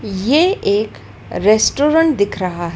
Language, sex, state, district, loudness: Hindi, female, Madhya Pradesh, Dhar, -15 LUFS